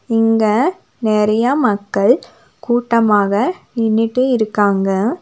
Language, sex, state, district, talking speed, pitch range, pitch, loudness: Tamil, female, Tamil Nadu, Nilgiris, 70 wpm, 210-245 Hz, 225 Hz, -15 LUFS